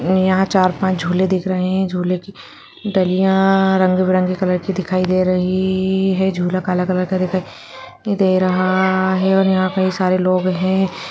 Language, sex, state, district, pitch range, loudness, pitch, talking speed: Hindi, female, Uttar Pradesh, Jyotiba Phule Nagar, 185-190 Hz, -17 LUFS, 185 Hz, 165 wpm